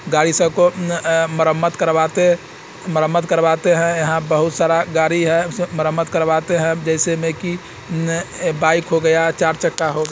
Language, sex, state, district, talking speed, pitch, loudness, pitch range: Hindi, male, Bihar, Muzaffarpur, 155 wpm, 165 Hz, -17 LUFS, 160-170 Hz